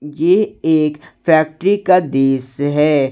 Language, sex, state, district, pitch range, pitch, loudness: Hindi, male, Jharkhand, Garhwa, 145-175 Hz, 155 Hz, -15 LUFS